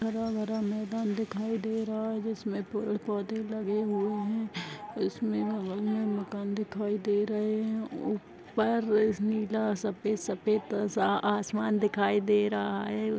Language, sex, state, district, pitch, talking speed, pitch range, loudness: Hindi, female, Chhattisgarh, Raigarh, 210 Hz, 135 wpm, 205-220 Hz, -31 LUFS